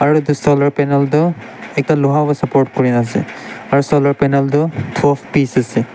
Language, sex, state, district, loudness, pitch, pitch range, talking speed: Nagamese, male, Nagaland, Dimapur, -15 LUFS, 140 Hz, 135-150 Hz, 180 wpm